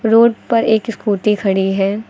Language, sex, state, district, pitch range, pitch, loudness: Hindi, female, Uttar Pradesh, Lucknow, 200-225 Hz, 220 Hz, -15 LUFS